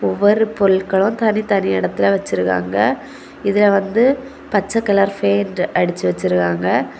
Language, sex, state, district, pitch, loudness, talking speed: Tamil, female, Tamil Nadu, Kanyakumari, 195 Hz, -17 LUFS, 110 wpm